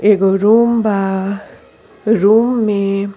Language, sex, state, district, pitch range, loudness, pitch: Bhojpuri, female, Uttar Pradesh, Deoria, 195-220 Hz, -14 LUFS, 205 Hz